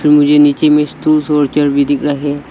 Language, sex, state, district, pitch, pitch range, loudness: Hindi, male, Arunachal Pradesh, Lower Dibang Valley, 145 Hz, 145-150 Hz, -12 LUFS